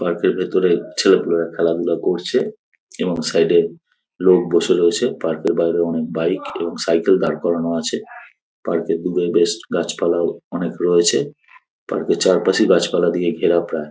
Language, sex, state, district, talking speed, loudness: Bengali, male, West Bengal, North 24 Parganas, 165 wpm, -18 LUFS